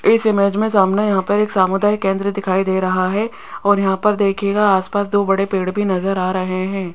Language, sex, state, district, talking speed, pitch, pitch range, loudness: Hindi, female, Rajasthan, Jaipur, 225 wpm, 195 Hz, 190-205 Hz, -17 LUFS